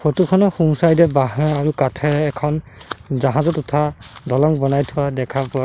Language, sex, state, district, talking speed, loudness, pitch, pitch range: Assamese, male, Assam, Sonitpur, 170 wpm, -18 LUFS, 145 Hz, 135-155 Hz